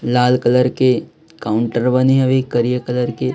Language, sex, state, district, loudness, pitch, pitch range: Hindi, female, Chhattisgarh, Raipur, -16 LUFS, 125 Hz, 120-130 Hz